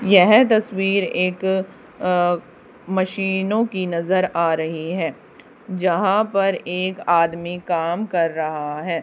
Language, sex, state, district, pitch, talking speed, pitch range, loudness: Hindi, female, Haryana, Charkhi Dadri, 185 Hz, 125 wpm, 170-195 Hz, -20 LUFS